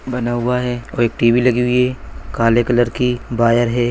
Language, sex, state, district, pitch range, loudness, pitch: Hindi, male, Chhattisgarh, Bilaspur, 120-125 Hz, -16 LUFS, 120 Hz